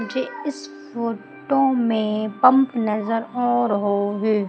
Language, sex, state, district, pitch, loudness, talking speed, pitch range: Hindi, female, Madhya Pradesh, Umaria, 225 Hz, -21 LUFS, 120 wpm, 210-250 Hz